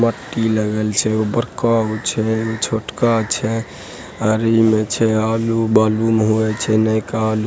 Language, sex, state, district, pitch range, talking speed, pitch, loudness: Angika, male, Bihar, Begusarai, 110-115 Hz, 155 wpm, 110 Hz, -17 LUFS